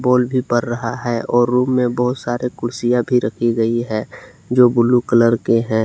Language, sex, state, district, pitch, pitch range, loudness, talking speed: Hindi, male, Jharkhand, Palamu, 120 Hz, 115-125 Hz, -17 LUFS, 205 wpm